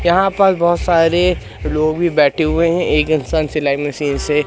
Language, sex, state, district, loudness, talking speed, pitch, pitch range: Hindi, male, Madhya Pradesh, Katni, -15 LUFS, 190 wpm, 160 Hz, 150-175 Hz